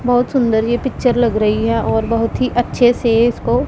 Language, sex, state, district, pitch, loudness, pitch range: Hindi, female, Punjab, Pathankot, 240 Hz, -15 LUFS, 230-245 Hz